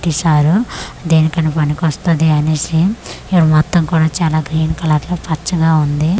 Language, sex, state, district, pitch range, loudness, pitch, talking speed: Telugu, female, Andhra Pradesh, Manyam, 155-170 Hz, -14 LUFS, 160 Hz, 115 wpm